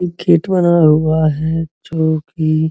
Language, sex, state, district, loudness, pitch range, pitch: Hindi, male, Uttar Pradesh, Muzaffarnagar, -15 LUFS, 155-170 Hz, 160 Hz